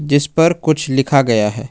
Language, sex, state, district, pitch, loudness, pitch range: Hindi, male, Jharkhand, Ranchi, 145 Hz, -15 LUFS, 135-155 Hz